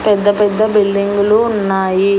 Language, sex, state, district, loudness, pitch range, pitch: Telugu, female, Andhra Pradesh, Annamaya, -13 LUFS, 200-210 Hz, 205 Hz